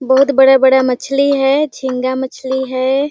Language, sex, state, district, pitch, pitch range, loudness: Hindi, female, Chhattisgarh, Sarguja, 265 Hz, 260-275 Hz, -13 LUFS